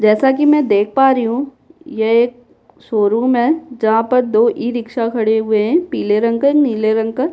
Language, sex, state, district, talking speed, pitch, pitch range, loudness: Hindi, female, Bihar, Kishanganj, 205 wpm, 240 Hz, 220-270 Hz, -15 LUFS